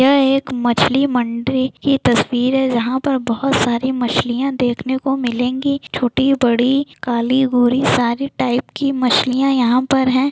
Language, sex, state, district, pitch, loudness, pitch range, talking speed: Hindi, female, Bihar, Jamui, 260 Hz, -17 LUFS, 245-270 Hz, 145 wpm